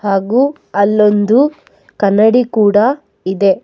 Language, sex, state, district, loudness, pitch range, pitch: Kannada, female, Karnataka, Bangalore, -13 LUFS, 200-250 Hz, 210 Hz